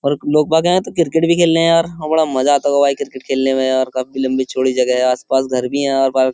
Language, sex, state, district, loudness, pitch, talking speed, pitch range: Hindi, male, Uttar Pradesh, Jyotiba Phule Nagar, -16 LUFS, 135 Hz, 285 wpm, 130-160 Hz